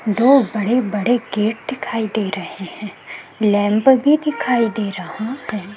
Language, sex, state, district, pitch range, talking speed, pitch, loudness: Hindi, female, Chhattisgarh, Korba, 205-245 Hz, 135 wpm, 215 Hz, -18 LUFS